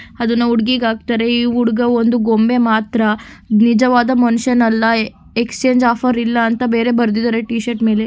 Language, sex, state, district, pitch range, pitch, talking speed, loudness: Kannada, female, Karnataka, Gulbarga, 225-240 Hz, 235 Hz, 140 wpm, -15 LUFS